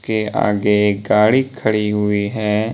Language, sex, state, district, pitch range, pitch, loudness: Hindi, male, Jharkhand, Deoghar, 105-110 Hz, 105 Hz, -17 LUFS